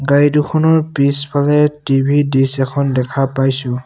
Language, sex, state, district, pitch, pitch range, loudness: Assamese, male, Assam, Sonitpur, 140 Hz, 135-145 Hz, -14 LUFS